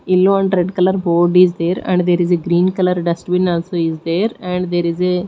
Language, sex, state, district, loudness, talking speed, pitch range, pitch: English, female, Odisha, Nuapada, -16 LUFS, 240 wpm, 175-185 Hz, 180 Hz